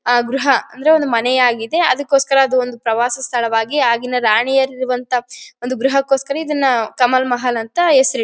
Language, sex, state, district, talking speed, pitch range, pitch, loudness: Kannada, female, Karnataka, Bellary, 155 wpm, 240-270 Hz, 255 Hz, -16 LUFS